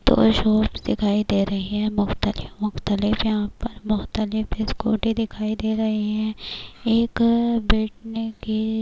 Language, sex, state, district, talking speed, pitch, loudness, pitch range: Urdu, female, Bihar, Kishanganj, 120 wpm, 215 Hz, -23 LUFS, 210-220 Hz